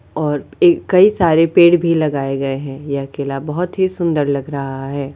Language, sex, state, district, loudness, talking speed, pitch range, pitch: Hindi, female, Uttar Pradesh, Varanasi, -16 LUFS, 200 wpm, 140-175 Hz, 150 Hz